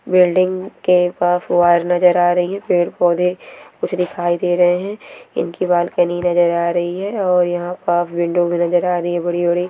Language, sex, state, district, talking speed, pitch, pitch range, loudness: Hindi, female, Goa, North and South Goa, 190 wpm, 175 Hz, 175-180 Hz, -17 LUFS